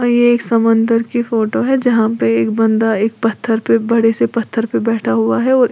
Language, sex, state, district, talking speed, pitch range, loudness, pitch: Hindi, female, Uttar Pradesh, Lalitpur, 200 wpm, 220-235 Hz, -14 LUFS, 230 Hz